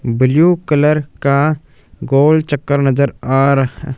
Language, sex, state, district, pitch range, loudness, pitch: Hindi, male, Punjab, Fazilka, 135-150 Hz, -14 LUFS, 140 Hz